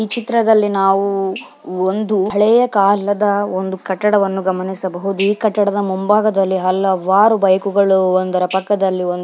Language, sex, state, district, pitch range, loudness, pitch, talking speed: Kannada, female, Karnataka, Bijapur, 190-205 Hz, -15 LUFS, 195 Hz, 105 wpm